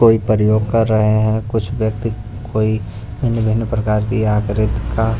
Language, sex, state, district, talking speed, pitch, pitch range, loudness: Hindi, male, Punjab, Pathankot, 150 wpm, 110 Hz, 105-115 Hz, -17 LUFS